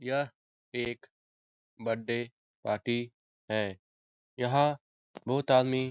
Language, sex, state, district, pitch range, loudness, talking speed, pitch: Hindi, male, Bihar, Jahanabad, 100-130 Hz, -31 LUFS, 90 wpm, 120 Hz